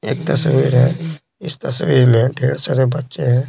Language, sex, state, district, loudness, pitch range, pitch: Hindi, male, Bihar, Patna, -16 LUFS, 125-150 Hz, 135 Hz